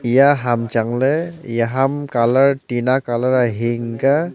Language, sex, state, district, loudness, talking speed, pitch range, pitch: Wancho, male, Arunachal Pradesh, Longding, -18 LUFS, 150 wpm, 120-140 Hz, 125 Hz